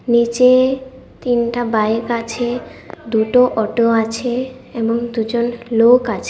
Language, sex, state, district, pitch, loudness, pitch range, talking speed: Bengali, female, Tripura, West Tripura, 235 Hz, -16 LUFS, 230-250 Hz, 105 wpm